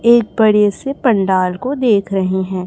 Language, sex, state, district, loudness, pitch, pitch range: Hindi, female, Chhattisgarh, Raipur, -15 LUFS, 210 Hz, 190-235 Hz